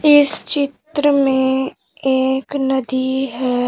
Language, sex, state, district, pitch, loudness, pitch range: Hindi, female, Uttar Pradesh, Shamli, 265 Hz, -17 LUFS, 260-285 Hz